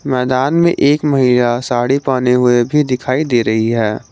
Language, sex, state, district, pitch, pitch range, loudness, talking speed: Hindi, male, Jharkhand, Garhwa, 125 Hz, 120-140 Hz, -14 LUFS, 175 wpm